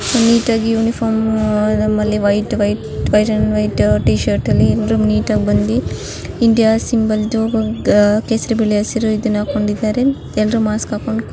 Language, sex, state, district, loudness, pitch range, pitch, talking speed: Kannada, female, Karnataka, Chamarajanagar, -15 LUFS, 205-225 Hz, 215 Hz, 115 wpm